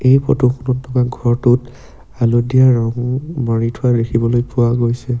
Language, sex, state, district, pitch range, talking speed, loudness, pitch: Assamese, male, Assam, Sonitpur, 120-130 Hz, 140 wpm, -16 LUFS, 125 Hz